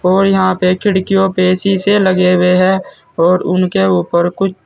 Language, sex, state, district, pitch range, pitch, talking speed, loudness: Hindi, male, Uttar Pradesh, Saharanpur, 180-195 Hz, 185 Hz, 170 wpm, -13 LUFS